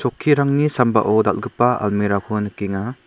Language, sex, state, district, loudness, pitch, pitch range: Garo, male, Meghalaya, South Garo Hills, -18 LUFS, 110 Hz, 105-125 Hz